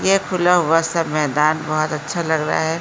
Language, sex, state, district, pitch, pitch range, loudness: Hindi, female, Uttarakhand, Uttarkashi, 160 Hz, 155-175 Hz, -18 LUFS